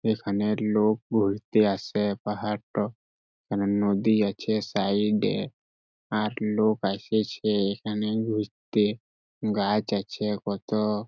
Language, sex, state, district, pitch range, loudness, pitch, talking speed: Bengali, male, West Bengal, Purulia, 100-110 Hz, -26 LUFS, 105 Hz, 90 wpm